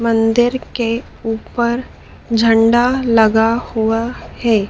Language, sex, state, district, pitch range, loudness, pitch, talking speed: Hindi, female, Madhya Pradesh, Dhar, 225-240 Hz, -16 LUFS, 230 Hz, 90 wpm